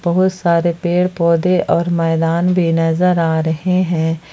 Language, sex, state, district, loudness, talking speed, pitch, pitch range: Hindi, female, Jharkhand, Palamu, -15 LUFS, 150 wpm, 170 Hz, 165-180 Hz